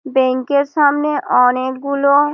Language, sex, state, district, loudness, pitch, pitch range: Bengali, female, West Bengal, Malda, -15 LUFS, 280 Hz, 260-290 Hz